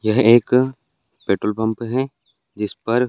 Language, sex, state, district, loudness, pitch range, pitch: Hindi, male, Uttarakhand, Tehri Garhwal, -19 LUFS, 110-125 Hz, 115 Hz